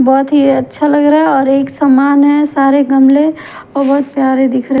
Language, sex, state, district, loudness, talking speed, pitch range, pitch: Hindi, female, Haryana, Jhajjar, -10 LUFS, 215 wpm, 270-290 Hz, 275 Hz